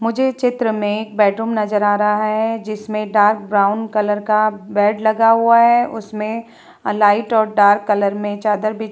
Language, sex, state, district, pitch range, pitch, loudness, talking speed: Hindi, female, Bihar, Vaishali, 205-225 Hz, 215 Hz, -16 LUFS, 180 wpm